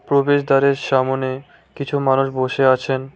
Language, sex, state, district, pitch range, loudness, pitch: Bengali, male, West Bengal, Cooch Behar, 130-140 Hz, -18 LUFS, 135 Hz